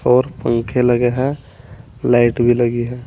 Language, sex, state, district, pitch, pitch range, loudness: Hindi, male, Uttar Pradesh, Saharanpur, 120 Hz, 120-125 Hz, -16 LUFS